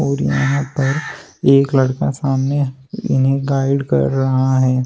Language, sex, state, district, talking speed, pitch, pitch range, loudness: Hindi, male, Uttar Pradesh, Shamli, 135 wpm, 135 Hz, 130-140 Hz, -17 LUFS